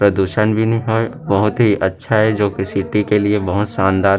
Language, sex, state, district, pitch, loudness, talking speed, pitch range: Chhattisgarhi, male, Chhattisgarh, Rajnandgaon, 105 Hz, -16 LUFS, 230 wpm, 95-110 Hz